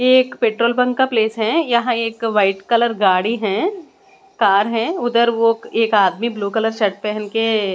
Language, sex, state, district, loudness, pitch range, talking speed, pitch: Hindi, female, Chandigarh, Chandigarh, -17 LUFS, 210-240 Hz, 180 wpm, 230 Hz